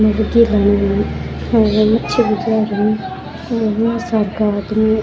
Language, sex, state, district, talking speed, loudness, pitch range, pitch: Rajasthani, female, Rajasthan, Churu, 50 wpm, -16 LUFS, 205-225 Hz, 215 Hz